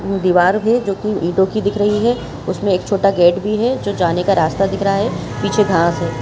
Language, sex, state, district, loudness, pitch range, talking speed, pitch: Hindi, female, Chhattisgarh, Bilaspur, -16 LUFS, 180-205 Hz, 250 wpm, 195 Hz